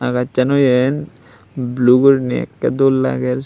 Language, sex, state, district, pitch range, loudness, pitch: Chakma, male, Tripura, Unakoti, 125-135 Hz, -15 LUFS, 130 Hz